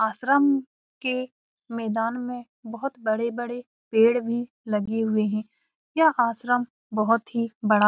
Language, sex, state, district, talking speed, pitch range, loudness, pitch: Hindi, female, Bihar, Saran, 120 wpm, 220-245 Hz, -25 LUFS, 235 Hz